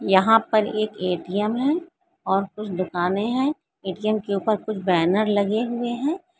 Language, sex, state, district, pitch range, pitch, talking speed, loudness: Hindi, female, West Bengal, Jalpaiguri, 195-245 Hz, 215 Hz, 160 wpm, -23 LUFS